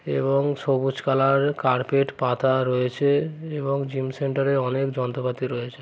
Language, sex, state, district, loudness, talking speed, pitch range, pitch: Bengali, male, West Bengal, Kolkata, -23 LUFS, 135 wpm, 125-140 Hz, 135 Hz